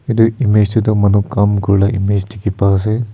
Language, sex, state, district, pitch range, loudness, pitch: Nagamese, male, Nagaland, Kohima, 100-110 Hz, -14 LUFS, 105 Hz